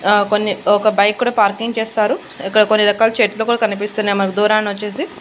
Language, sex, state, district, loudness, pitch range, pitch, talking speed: Telugu, female, Andhra Pradesh, Annamaya, -16 LUFS, 205-220 Hz, 210 Hz, 185 wpm